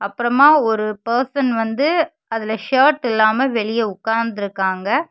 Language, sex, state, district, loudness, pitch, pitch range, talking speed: Tamil, female, Tamil Nadu, Kanyakumari, -17 LUFS, 230 Hz, 220-270 Hz, 105 wpm